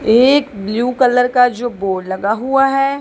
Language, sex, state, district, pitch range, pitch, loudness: Hindi, female, Punjab, Kapurthala, 210-270 Hz, 245 Hz, -15 LUFS